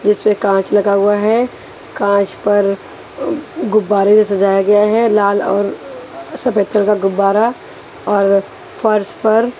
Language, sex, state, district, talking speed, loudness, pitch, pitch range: Hindi, female, Haryana, Rohtak, 130 wpm, -14 LUFS, 205 Hz, 200-215 Hz